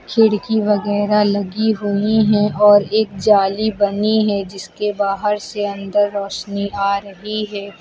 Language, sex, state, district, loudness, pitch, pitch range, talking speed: Hindi, female, Uttar Pradesh, Lucknow, -17 LUFS, 205 Hz, 200-210 Hz, 140 wpm